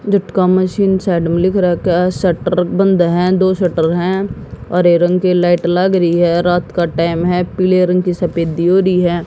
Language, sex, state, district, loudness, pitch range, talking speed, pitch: Hindi, female, Haryana, Jhajjar, -14 LUFS, 175-185 Hz, 195 wpm, 180 Hz